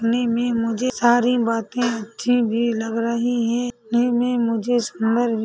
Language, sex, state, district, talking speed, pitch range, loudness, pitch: Hindi, female, Chhattisgarh, Rajnandgaon, 165 wpm, 230-245 Hz, -21 LUFS, 235 Hz